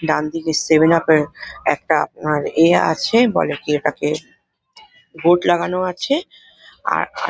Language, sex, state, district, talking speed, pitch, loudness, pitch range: Bengali, female, West Bengal, Paschim Medinipur, 155 wpm, 165 Hz, -18 LUFS, 155-180 Hz